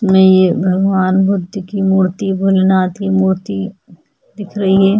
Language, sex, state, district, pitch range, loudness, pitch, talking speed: Hindi, female, Chhattisgarh, Kabirdham, 185-195 Hz, -14 LUFS, 190 Hz, 145 wpm